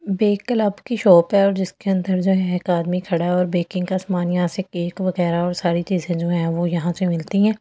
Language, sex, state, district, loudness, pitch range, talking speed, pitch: Hindi, female, Delhi, New Delhi, -20 LUFS, 175-190 Hz, 245 wpm, 180 Hz